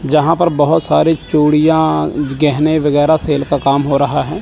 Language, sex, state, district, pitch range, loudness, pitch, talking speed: Hindi, male, Chandigarh, Chandigarh, 145-160 Hz, -13 LUFS, 150 Hz, 175 wpm